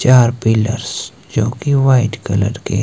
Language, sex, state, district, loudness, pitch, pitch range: Hindi, male, Himachal Pradesh, Shimla, -15 LUFS, 120 Hz, 110-130 Hz